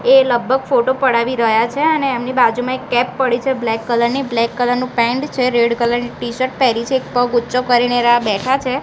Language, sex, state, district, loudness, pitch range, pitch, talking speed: Gujarati, female, Gujarat, Gandhinagar, -16 LUFS, 235-260 Hz, 245 Hz, 225 wpm